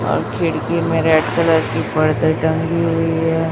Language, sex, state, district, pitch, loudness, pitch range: Hindi, female, Chhattisgarh, Raipur, 160 Hz, -17 LUFS, 155-165 Hz